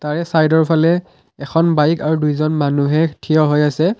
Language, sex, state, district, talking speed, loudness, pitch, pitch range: Assamese, male, Assam, Kamrup Metropolitan, 135 wpm, -16 LUFS, 155 Hz, 150-165 Hz